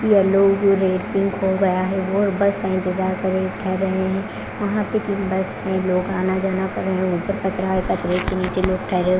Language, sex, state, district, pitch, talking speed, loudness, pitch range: Hindi, female, Punjab, Fazilka, 190 Hz, 215 wpm, -21 LUFS, 185-195 Hz